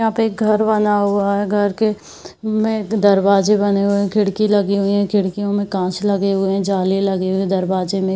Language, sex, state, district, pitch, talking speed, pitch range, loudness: Hindi, female, Bihar, Saharsa, 200 Hz, 205 wpm, 195-210 Hz, -17 LUFS